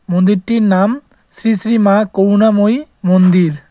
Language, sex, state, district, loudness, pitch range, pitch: Bengali, male, West Bengal, Cooch Behar, -13 LUFS, 185-225 Hz, 205 Hz